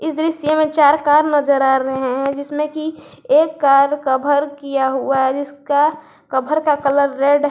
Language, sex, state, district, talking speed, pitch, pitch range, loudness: Hindi, female, Jharkhand, Garhwa, 175 wpm, 285 Hz, 275-305 Hz, -16 LUFS